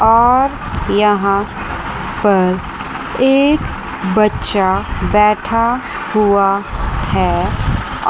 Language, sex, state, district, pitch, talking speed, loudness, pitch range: Hindi, female, Chandigarh, Chandigarh, 210 Hz, 60 wpm, -15 LUFS, 200-240 Hz